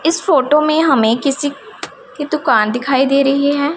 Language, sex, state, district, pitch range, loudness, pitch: Hindi, female, Punjab, Pathankot, 270-305 Hz, -14 LUFS, 285 Hz